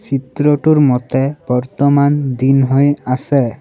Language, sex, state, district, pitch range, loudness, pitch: Assamese, male, Assam, Sonitpur, 130-145 Hz, -14 LUFS, 135 Hz